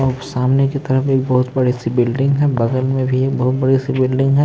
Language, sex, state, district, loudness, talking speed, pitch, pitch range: Hindi, male, Maharashtra, Mumbai Suburban, -16 LUFS, 230 wpm, 130 Hz, 125-135 Hz